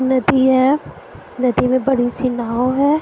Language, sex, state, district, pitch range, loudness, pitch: Hindi, female, Punjab, Fazilka, 250-270 Hz, -16 LUFS, 260 Hz